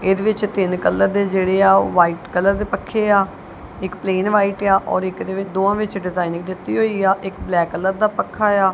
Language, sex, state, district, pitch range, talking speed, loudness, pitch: Punjabi, male, Punjab, Kapurthala, 185-200 Hz, 225 wpm, -18 LUFS, 195 Hz